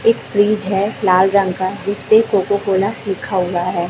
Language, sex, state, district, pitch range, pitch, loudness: Hindi, female, Chhattisgarh, Raipur, 185-205 Hz, 200 Hz, -16 LUFS